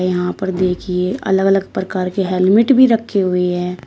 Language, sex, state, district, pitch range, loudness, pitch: Hindi, female, Uttar Pradesh, Shamli, 180-195 Hz, -16 LUFS, 185 Hz